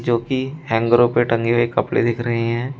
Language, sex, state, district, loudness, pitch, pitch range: Hindi, male, Uttar Pradesh, Shamli, -19 LUFS, 120 Hz, 115-120 Hz